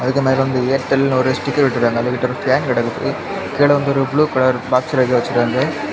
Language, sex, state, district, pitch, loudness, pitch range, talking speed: Tamil, male, Tamil Nadu, Kanyakumari, 130 Hz, -17 LUFS, 125-140 Hz, 200 wpm